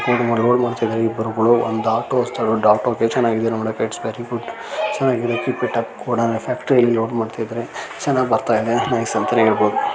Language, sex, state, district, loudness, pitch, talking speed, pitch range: Kannada, male, Karnataka, Shimoga, -19 LUFS, 115 Hz, 185 wpm, 115-120 Hz